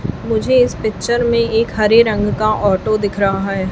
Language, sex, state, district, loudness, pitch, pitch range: Hindi, female, Chhattisgarh, Raipur, -15 LUFS, 215 Hz, 200-230 Hz